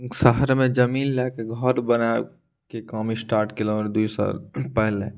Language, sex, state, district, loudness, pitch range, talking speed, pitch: Maithili, male, Bihar, Purnia, -23 LUFS, 110-125 Hz, 175 wpm, 115 Hz